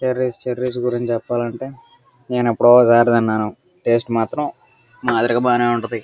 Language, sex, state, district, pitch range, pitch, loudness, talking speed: Telugu, male, Andhra Pradesh, Guntur, 115-125 Hz, 120 Hz, -18 LUFS, 100 wpm